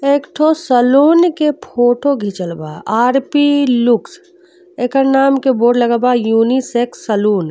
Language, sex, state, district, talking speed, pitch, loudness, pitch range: Bhojpuri, female, Uttar Pradesh, Deoria, 145 wpm, 255 Hz, -13 LUFS, 235-285 Hz